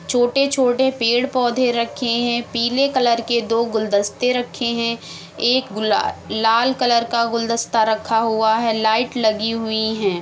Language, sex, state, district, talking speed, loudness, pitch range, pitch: Hindi, female, Uttar Pradesh, Muzaffarnagar, 140 wpm, -19 LUFS, 220-245 Hz, 235 Hz